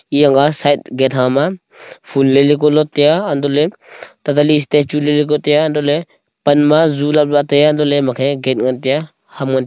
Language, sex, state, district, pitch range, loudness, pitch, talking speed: Wancho, male, Arunachal Pradesh, Longding, 140-150 Hz, -14 LUFS, 145 Hz, 230 wpm